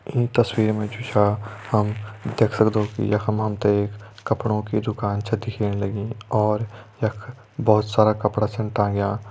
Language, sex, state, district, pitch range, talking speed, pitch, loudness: Hindi, male, Uttarakhand, Tehri Garhwal, 105-110 Hz, 165 wpm, 105 Hz, -23 LUFS